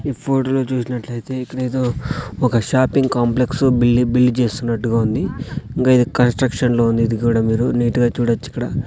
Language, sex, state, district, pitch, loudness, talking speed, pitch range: Telugu, male, Andhra Pradesh, Sri Satya Sai, 125 Hz, -18 LUFS, 155 wpm, 120-130 Hz